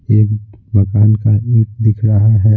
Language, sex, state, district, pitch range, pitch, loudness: Hindi, male, Bihar, Patna, 105-110 Hz, 110 Hz, -13 LUFS